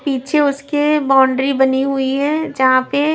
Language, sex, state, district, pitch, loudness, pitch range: Hindi, female, Maharashtra, Washim, 275 Hz, -15 LUFS, 265-290 Hz